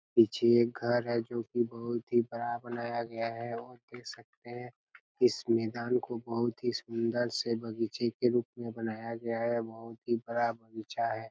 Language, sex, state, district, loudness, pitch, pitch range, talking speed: Hindi, male, Chhattisgarh, Raigarh, -32 LUFS, 120 Hz, 115-120 Hz, 190 wpm